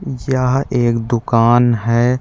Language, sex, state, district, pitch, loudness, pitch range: Chhattisgarhi, male, Chhattisgarh, Raigarh, 120 Hz, -15 LUFS, 115-130 Hz